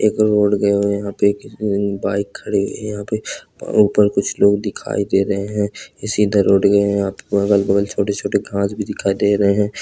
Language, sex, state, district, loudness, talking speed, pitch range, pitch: Hindi, male, Bihar, East Champaran, -18 LUFS, 205 wpm, 100-105 Hz, 100 Hz